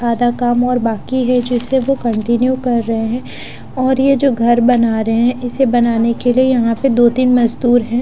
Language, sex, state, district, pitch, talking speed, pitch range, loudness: Hindi, female, Punjab, Fazilka, 245 Hz, 210 wpm, 235-255 Hz, -14 LUFS